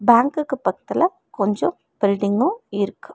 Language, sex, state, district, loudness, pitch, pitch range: Tamil, female, Tamil Nadu, Nilgiris, -21 LUFS, 235 Hz, 200-300 Hz